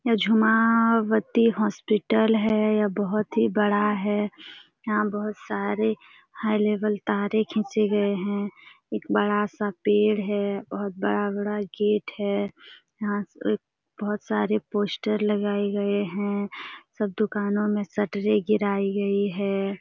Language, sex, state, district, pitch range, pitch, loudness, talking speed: Hindi, female, Jharkhand, Sahebganj, 205-215 Hz, 210 Hz, -25 LUFS, 130 wpm